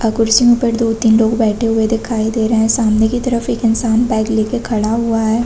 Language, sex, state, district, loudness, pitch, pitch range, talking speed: Hindi, female, Chhattisgarh, Bastar, -14 LUFS, 225 Hz, 220-230 Hz, 255 wpm